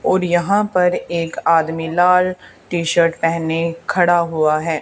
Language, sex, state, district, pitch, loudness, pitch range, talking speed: Hindi, female, Haryana, Charkhi Dadri, 170 Hz, -17 LUFS, 165-180 Hz, 135 wpm